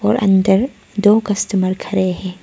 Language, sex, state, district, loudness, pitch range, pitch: Hindi, female, Arunachal Pradesh, Lower Dibang Valley, -16 LUFS, 190-205 Hz, 195 Hz